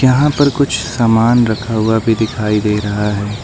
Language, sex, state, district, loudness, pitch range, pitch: Hindi, male, Uttar Pradesh, Lucknow, -14 LUFS, 105-120 Hz, 110 Hz